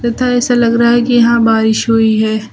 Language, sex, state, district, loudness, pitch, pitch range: Hindi, female, Uttar Pradesh, Lucknow, -11 LUFS, 235 Hz, 220-240 Hz